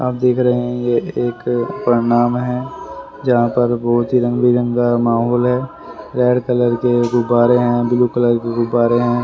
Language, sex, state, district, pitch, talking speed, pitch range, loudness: Hindi, male, Haryana, Rohtak, 120 Hz, 170 wpm, 120-125 Hz, -16 LUFS